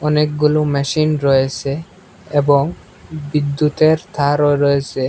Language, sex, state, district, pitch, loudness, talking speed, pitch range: Bengali, male, Assam, Hailakandi, 150 Hz, -16 LUFS, 85 wpm, 140-155 Hz